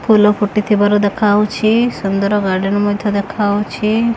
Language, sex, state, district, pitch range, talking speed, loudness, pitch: Odia, female, Odisha, Khordha, 205-215 Hz, 100 wpm, -15 LUFS, 205 Hz